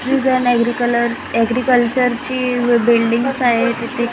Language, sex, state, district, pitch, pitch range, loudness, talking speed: Marathi, female, Maharashtra, Gondia, 240 Hz, 235-255 Hz, -16 LUFS, 60 wpm